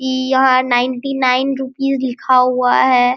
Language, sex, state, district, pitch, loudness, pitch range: Hindi, male, Bihar, Araria, 255 Hz, -15 LUFS, 250-265 Hz